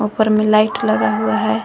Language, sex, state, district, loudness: Hindi, female, Jharkhand, Garhwa, -16 LUFS